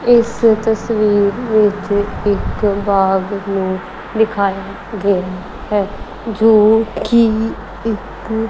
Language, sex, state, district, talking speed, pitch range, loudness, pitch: Punjabi, female, Punjab, Kapurthala, 85 wpm, 200-225 Hz, -16 LUFS, 210 Hz